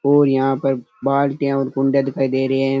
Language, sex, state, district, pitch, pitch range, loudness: Rajasthani, male, Rajasthan, Churu, 135 Hz, 135-140 Hz, -18 LUFS